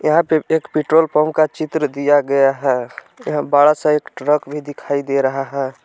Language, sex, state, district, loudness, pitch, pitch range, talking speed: Hindi, male, Jharkhand, Palamu, -17 LUFS, 145 Hz, 140-155 Hz, 205 wpm